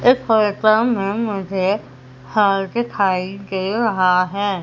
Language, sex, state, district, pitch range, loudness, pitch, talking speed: Hindi, female, Madhya Pradesh, Umaria, 190-215 Hz, -18 LUFS, 200 Hz, 105 wpm